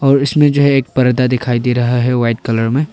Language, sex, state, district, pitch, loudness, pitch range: Hindi, male, Arunachal Pradesh, Papum Pare, 125 Hz, -13 LUFS, 120-140 Hz